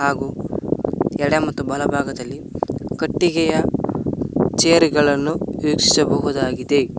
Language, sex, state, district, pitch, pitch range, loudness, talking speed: Kannada, male, Karnataka, Koppal, 145 Hz, 140-160 Hz, -19 LUFS, 75 wpm